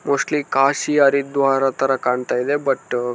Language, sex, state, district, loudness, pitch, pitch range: Kannada, male, Karnataka, Mysore, -19 LUFS, 135 Hz, 135-140 Hz